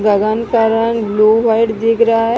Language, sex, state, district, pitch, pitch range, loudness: Hindi, female, Odisha, Sambalpur, 225 Hz, 215-230 Hz, -13 LUFS